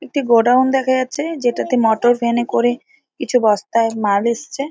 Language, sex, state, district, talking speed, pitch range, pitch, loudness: Bengali, female, West Bengal, North 24 Parganas, 180 wpm, 235-275 Hz, 245 Hz, -16 LUFS